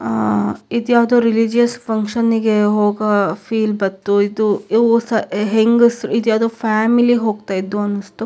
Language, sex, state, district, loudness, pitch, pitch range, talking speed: Kannada, female, Karnataka, Shimoga, -16 LUFS, 220 Hz, 205-230 Hz, 110 wpm